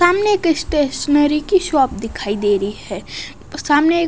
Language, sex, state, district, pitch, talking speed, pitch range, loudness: Hindi, female, Odisha, Nuapada, 295 Hz, 145 wpm, 260-335 Hz, -17 LUFS